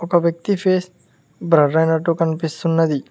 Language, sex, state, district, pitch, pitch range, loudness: Telugu, male, Telangana, Mahabubabad, 165 Hz, 160-175 Hz, -18 LUFS